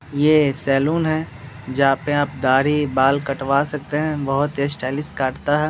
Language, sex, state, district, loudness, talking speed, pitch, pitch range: Hindi, male, Bihar, Muzaffarpur, -20 LUFS, 170 wpm, 140 Hz, 135-150 Hz